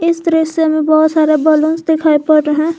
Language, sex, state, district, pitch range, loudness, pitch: Hindi, female, Jharkhand, Garhwa, 310-320 Hz, -12 LUFS, 315 Hz